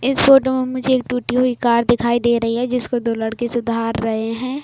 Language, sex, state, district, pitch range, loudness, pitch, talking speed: Hindi, female, Chhattisgarh, Bilaspur, 235-255 Hz, -17 LUFS, 240 Hz, 245 wpm